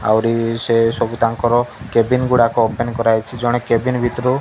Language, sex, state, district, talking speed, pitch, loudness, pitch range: Odia, male, Odisha, Malkangiri, 165 wpm, 115 Hz, -17 LUFS, 115-120 Hz